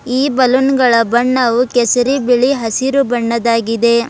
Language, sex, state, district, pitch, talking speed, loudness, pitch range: Kannada, female, Karnataka, Bidar, 245 Hz, 115 wpm, -13 LUFS, 235-260 Hz